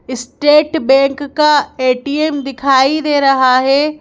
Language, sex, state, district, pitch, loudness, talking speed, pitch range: Hindi, female, Madhya Pradesh, Bhopal, 280 Hz, -13 LUFS, 120 wpm, 265-295 Hz